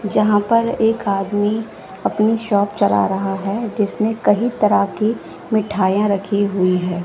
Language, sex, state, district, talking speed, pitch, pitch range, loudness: Hindi, female, Bihar, West Champaran, 145 wpm, 205 Hz, 200-220 Hz, -18 LUFS